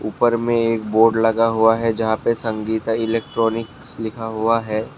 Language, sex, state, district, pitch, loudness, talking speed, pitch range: Hindi, male, Assam, Kamrup Metropolitan, 115 Hz, -19 LUFS, 170 wpm, 110-115 Hz